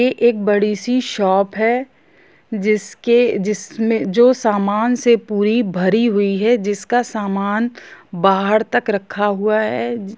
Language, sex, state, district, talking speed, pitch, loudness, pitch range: Hindi, female, Jharkhand, Jamtara, 130 wpm, 215 Hz, -17 LUFS, 205-235 Hz